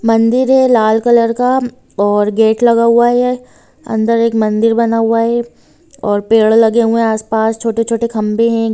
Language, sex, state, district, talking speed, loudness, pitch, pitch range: Hindi, female, Bihar, Sitamarhi, 170 wpm, -12 LUFS, 230 Hz, 220-235 Hz